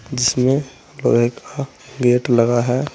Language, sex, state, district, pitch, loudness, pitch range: Hindi, male, Uttar Pradesh, Saharanpur, 125 Hz, -17 LUFS, 120-135 Hz